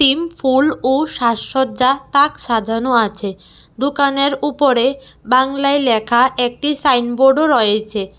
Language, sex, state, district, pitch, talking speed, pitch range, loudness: Bengali, female, Tripura, West Tripura, 265 Hz, 95 wpm, 235-280 Hz, -15 LUFS